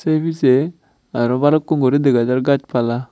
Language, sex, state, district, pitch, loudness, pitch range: Chakma, male, Tripura, Unakoti, 135 Hz, -17 LUFS, 125-155 Hz